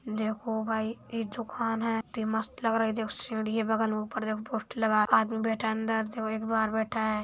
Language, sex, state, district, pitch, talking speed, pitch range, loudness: Hindi, male, Uttar Pradesh, Hamirpur, 220 Hz, 205 wpm, 220-225 Hz, -30 LUFS